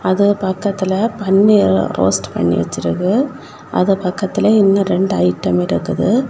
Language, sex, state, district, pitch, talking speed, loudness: Tamil, female, Tamil Nadu, Kanyakumari, 195 Hz, 115 wpm, -15 LUFS